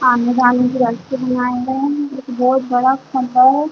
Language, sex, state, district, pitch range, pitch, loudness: Hindi, female, Chhattisgarh, Bilaspur, 250-265 Hz, 255 Hz, -16 LUFS